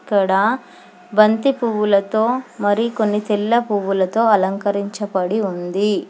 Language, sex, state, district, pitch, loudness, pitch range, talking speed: Telugu, female, Telangana, Hyderabad, 210 Hz, -18 LUFS, 195-220 Hz, 80 wpm